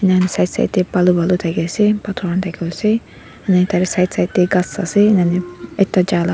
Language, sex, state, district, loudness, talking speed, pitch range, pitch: Nagamese, female, Nagaland, Dimapur, -16 LUFS, 170 wpm, 180-195 Hz, 180 Hz